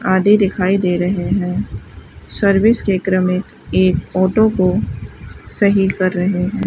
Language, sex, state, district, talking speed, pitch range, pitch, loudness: Hindi, female, Rajasthan, Bikaner, 145 wpm, 180-195 Hz, 185 Hz, -16 LUFS